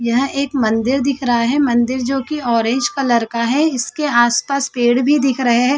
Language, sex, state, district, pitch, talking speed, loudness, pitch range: Hindi, female, Chhattisgarh, Sarguja, 255 Hz, 220 wpm, -16 LUFS, 240-275 Hz